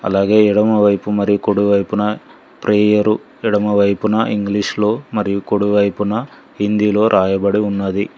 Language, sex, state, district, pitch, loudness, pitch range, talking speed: Telugu, male, Telangana, Mahabubabad, 105 Hz, -16 LUFS, 100-105 Hz, 90 wpm